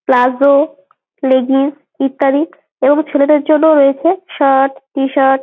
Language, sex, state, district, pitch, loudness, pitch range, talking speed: Bengali, female, West Bengal, Jalpaiguri, 280 Hz, -13 LUFS, 270-295 Hz, 110 wpm